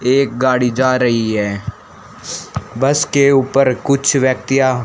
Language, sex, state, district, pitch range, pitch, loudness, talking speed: Hindi, male, Haryana, Charkhi Dadri, 120-135 Hz, 130 Hz, -15 LUFS, 125 wpm